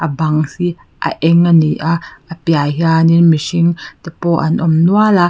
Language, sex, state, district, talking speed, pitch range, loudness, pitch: Mizo, female, Mizoram, Aizawl, 215 wpm, 160-170 Hz, -13 LUFS, 165 Hz